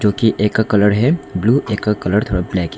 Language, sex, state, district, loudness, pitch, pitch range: Hindi, male, Arunachal Pradesh, Longding, -16 LUFS, 105 Hz, 100-110 Hz